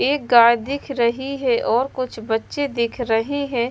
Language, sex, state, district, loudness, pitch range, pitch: Hindi, female, Bihar, West Champaran, -20 LUFS, 235-275 Hz, 245 Hz